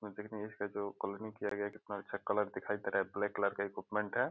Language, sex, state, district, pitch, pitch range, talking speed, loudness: Hindi, male, Bihar, Gopalganj, 105 Hz, 100-105 Hz, 290 wpm, -38 LUFS